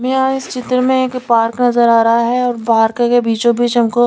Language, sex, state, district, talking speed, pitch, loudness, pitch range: Hindi, female, Chandigarh, Chandigarh, 250 wpm, 240 Hz, -14 LUFS, 235-250 Hz